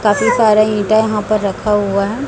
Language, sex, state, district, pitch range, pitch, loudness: Hindi, female, Chhattisgarh, Raipur, 205-215 Hz, 210 Hz, -14 LUFS